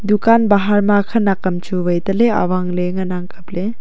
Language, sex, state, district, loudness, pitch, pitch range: Wancho, female, Arunachal Pradesh, Longding, -16 LUFS, 195 Hz, 180-210 Hz